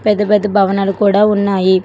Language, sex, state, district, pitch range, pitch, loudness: Telugu, female, Telangana, Hyderabad, 195-210 Hz, 200 Hz, -13 LUFS